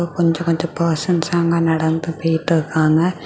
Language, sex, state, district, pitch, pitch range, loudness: Tamil, female, Tamil Nadu, Kanyakumari, 165 Hz, 160-170 Hz, -18 LUFS